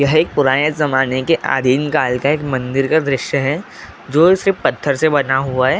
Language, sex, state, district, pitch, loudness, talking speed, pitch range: Hindi, male, Maharashtra, Gondia, 140 Hz, -16 LUFS, 205 wpm, 130-155 Hz